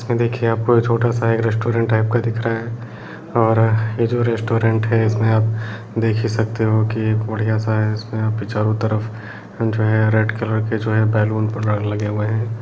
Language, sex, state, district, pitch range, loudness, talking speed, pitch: Kumaoni, male, Uttarakhand, Uttarkashi, 110-115 Hz, -19 LUFS, 190 wpm, 110 Hz